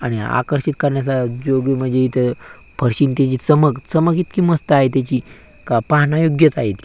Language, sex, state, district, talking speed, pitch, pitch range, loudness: Marathi, male, Maharashtra, Aurangabad, 185 wpm, 135 Hz, 130-150 Hz, -17 LUFS